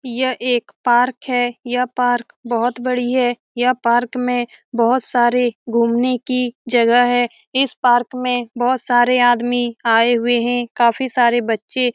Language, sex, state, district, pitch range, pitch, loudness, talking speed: Hindi, female, Bihar, Saran, 240-250 Hz, 245 Hz, -17 LUFS, 155 wpm